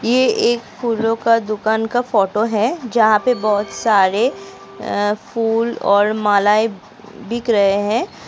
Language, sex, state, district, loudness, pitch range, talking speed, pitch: Hindi, female, Uttar Pradesh, Jalaun, -17 LUFS, 205-230 Hz, 130 wpm, 220 Hz